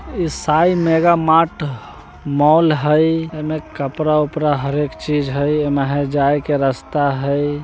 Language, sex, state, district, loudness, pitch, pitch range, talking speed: Bajjika, male, Bihar, Vaishali, -17 LUFS, 150 Hz, 140-155 Hz, 135 wpm